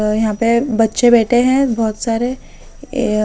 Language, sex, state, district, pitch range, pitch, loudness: Hindi, female, Maharashtra, Mumbai Suburban, 220-250 Hz, 235 Hz, -15 LUFS